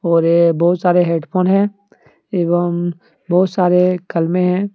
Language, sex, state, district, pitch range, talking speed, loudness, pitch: Hindi, male, Jharkhand, Deoghar, 170-185 Hz, 140 wpm, -16 LUFS, 180 Hz